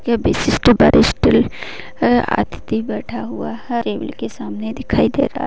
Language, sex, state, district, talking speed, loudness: Hindi, female, Uttar Pradesh, Deoria, 165 wpm, -17 LUFS